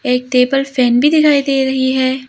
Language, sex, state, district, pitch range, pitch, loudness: Hindi, female, Arunachal Pradesh, Lower Dibang Valley, 255-275 Hz, 260 Hz, -13 LUFS